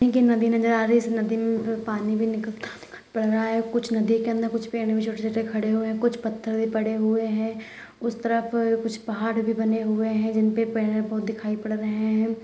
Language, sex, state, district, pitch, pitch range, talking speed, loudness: Hindi, male, Bihar, Purnia, 225 Hz, 220-230 Hz, 240 wpm, -25 LUFS